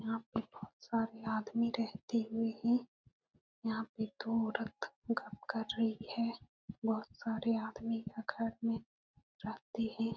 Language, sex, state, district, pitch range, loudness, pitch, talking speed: Hindi, female, Uttar Pradesh, Etah, 220-230 Hz, -38 LUFS, 225 Hz, 140 wpm